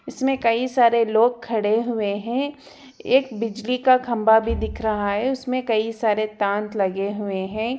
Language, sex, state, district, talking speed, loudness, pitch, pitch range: Hindi, female, Chhattisgarh, Jashpur, 170 wpm, -21 LUFS, 230 Hz, 215-255 Hz